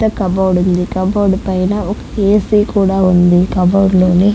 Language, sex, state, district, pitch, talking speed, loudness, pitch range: Telugu, female, Andhra Pradesh, Guntur, 190 Hz, 150 wpm, -13 LUFS, 185-205 Hz